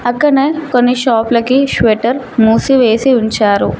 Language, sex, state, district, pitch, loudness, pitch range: Telugu, female, Telangana, Mahabubabad, 245 Hz, -12 LUFS, 225-270 Hz